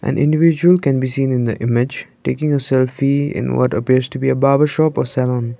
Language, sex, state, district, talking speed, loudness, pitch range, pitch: English, male, Sikkim, Gangtok, 225 wpm, -16 LUFS, 125-145 Hz, 135 Hz